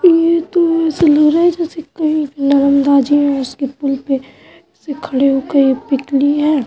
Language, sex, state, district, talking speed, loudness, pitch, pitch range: Hindi, female, Uttar Pradesh, Jalaun, 135 wpm, -14 LUFS, 290 Hz, 275-320 Hz